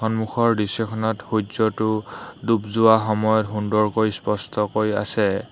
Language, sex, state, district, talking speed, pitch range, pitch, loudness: Assamese, male, Assam, Hailakandi, 100 wpm, 105-110 Hz, 110 Hz, -21 LUFS